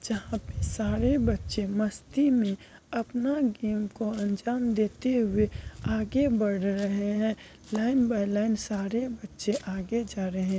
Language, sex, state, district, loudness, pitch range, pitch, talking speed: Hindi, female, Bihar, Kishanganj, -28 LUFS, 205-235 Hz, 215 Hz, 135 wpm